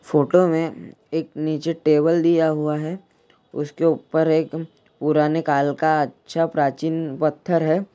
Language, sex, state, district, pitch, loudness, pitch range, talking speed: Hindi, male, Jharkhand, Jamtara, 160 Hz, -21 LUFS, 150-165 Hz, 130 wpm